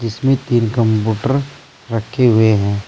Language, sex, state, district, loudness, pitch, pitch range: Hindi, male, Uttar Pradesh, Saharanpur, -16 LUFS, 115 Hz, 110-135 Hz